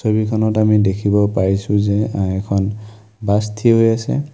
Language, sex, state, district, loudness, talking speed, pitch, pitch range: Assamese, male, Assam, Kamrup Metropolitan, -17 LUFS, 165 wpm, 105 Hz, 100-110 Hz